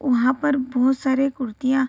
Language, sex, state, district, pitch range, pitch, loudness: Hindi, female, Bihar, Vaishali, 255-270 Hz, 265 Hz, -21 LUFS